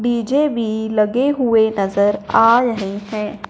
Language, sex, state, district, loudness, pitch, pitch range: Hindi, male, Punjab, Fazilka, -17 LUFS, 220 Hz, 210-240 Hz